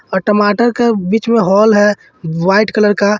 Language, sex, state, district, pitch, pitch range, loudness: Hindi, male, Jharkhand, Ranchi, 210 Hz, 200-220 Hz, -12 LUFS